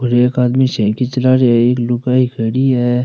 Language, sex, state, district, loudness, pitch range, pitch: Rajasthani, male, Rajasthan, Nagaur, -14 LUFS, 120-130 Hz, 125 Hz